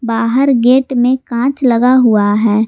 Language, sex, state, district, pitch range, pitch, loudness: Hindi, female, Jharkhand, Garhwa, 230-260 Hz, 245 Hz, -12 LUFS